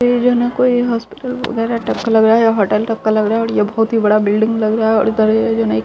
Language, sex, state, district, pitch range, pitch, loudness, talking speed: Hindi, female, Bihar, Saharsa, 215-235 Hz, 225 Hz, -15 LUFS, 275 wpm